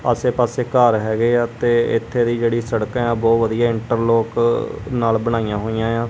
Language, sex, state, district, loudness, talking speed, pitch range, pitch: Punjabi, male, Punjab, Kapurthala, -18 LUFS, 185 wpm, 115-120 Hz, 115 Hz